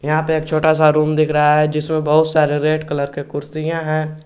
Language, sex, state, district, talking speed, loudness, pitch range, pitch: Hindi, male, Jharkhand, Garhwa, 240 wpm, -17 LUFS, 150-155 Hz, 155 Hz